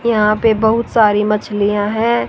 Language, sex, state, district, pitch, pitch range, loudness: Hindi, female, Haryana, Rohtak, 215 Hz, 205-225 Hz, -14 LUFS